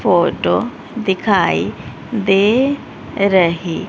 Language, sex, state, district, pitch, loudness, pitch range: Hindi, female, Haryana, Rohtak, 200 Hz, -16 LUFS, 185-235 Hz